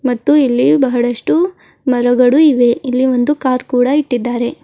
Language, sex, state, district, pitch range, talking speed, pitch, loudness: Kannada, female, Karnataka, Bidar, 245-280 Hz, 130 wpm, 250 Hz, -13 LUFS